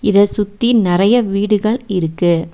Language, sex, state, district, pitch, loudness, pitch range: Tamil, female, Tamil Nadu, Nilgiris, 205 Hz, -15 LUFS, 180-220 Hz